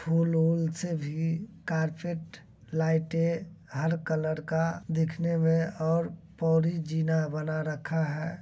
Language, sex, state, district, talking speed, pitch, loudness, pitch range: Angika, male, Bihar, Begusarai, 115 wpm, 160 Hz, -29 LUFS, 160-165 Hz